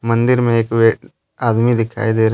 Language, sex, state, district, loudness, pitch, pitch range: Hindi, male, Jharkhand, Deoghar, -16 LUFS, 115 Hz, 115-120 Hz